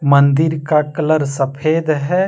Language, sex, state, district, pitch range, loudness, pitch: Hindi, male, Jharkhand, Deoghar, 140-155 Hz, -16 LUFS, 150 Hz